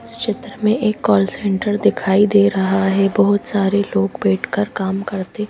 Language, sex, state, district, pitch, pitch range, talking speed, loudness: Hindi, female, Madhya Pradesh, Bhopal, 200 Hz, 190-210 Hz, 175 wpm, -17 LUFS